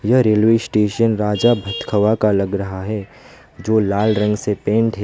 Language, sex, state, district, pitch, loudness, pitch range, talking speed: Hindi, male, West Bengal, Alipurduar, 105 Hz, -17 LUFS, 100-110 Hz, 190 wpm